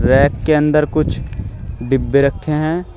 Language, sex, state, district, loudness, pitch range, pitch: Hindi, male, Uttar Pradesh, Shamli, -16 LUFS, 120-150 Hz, 140 Hz